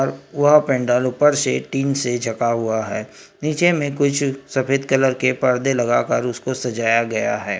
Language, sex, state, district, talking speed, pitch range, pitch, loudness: Hindi, male, Maharashtra, Gondia, 175 wpm, 120-140 Hz, 130 Hz, -19 LUFS